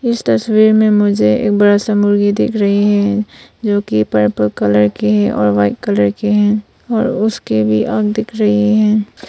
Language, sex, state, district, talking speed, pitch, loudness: Hindi, female, Arunachal Pradesh, Papum Pare, 185 wpm, 205 Hz, -13 LUFS